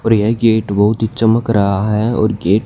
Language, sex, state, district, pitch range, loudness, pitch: Hindi, male, Haryana, Jhajjar, 105-115 Hz, -14 LUFS, 110 Hz